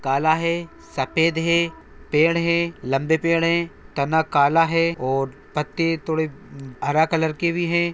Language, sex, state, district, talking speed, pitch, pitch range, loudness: Hindi, male, Bihar, Araria, 150 wpm, 160 Hz, 140-170 Hz, -21 LUFS